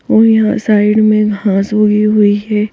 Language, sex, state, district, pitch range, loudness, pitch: Hindi, female, Madhya Pradesh, Bhopal, 210-215 Hz, -11 LUFS, 210 Hz